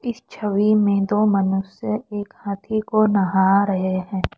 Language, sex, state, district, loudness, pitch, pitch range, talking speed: Hindi, female, Assam, Kamrup Metropolitan, -20 LUFS, 205 Hz, 195-215 Hz, 150 wpm